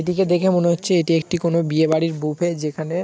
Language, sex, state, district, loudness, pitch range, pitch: Bengali, male, West Bengal, Kolkata, -19 LUFS, 160-175 Hz, 170 Hz